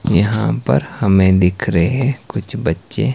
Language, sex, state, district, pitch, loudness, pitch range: Hindi, male, Himachal Pradesh, Shimla, 100 Hz, -16 LUFS, 90-130 Hz